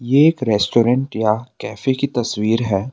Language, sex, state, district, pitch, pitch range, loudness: Hindi, male, Assam, Sonitpur, 120 Hz, 105-130 Hz, -18 LUFS